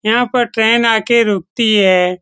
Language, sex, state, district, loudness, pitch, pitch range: Hindi, male, Bihar, Saran, -13 LUFS, 225 Hz, 200-235 Hz